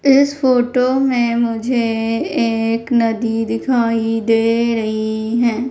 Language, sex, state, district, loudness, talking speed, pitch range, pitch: Hindi, female, Madhya Pradesh, Umaria, -16 LUFS, 105 wpm, 225-250 Hz, 230 Hz